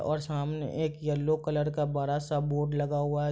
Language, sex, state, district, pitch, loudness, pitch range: Hindi, male, Bihar, East Champaran, 150 Hz, -30 LUFS, 145-150 Hz